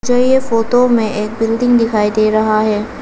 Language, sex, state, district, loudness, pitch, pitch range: Hindi, female, Arunachal Pradesh, Lower Dibang Valley, -14 LUFS, 225 Hz, 215-245 Hz